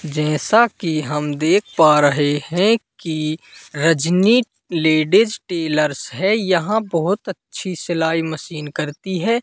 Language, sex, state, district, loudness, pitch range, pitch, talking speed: Hindi, male, Madhya Pradesh, Katni, -18 LUFS, 150-195 Hz, 165 Hz, 120 wpm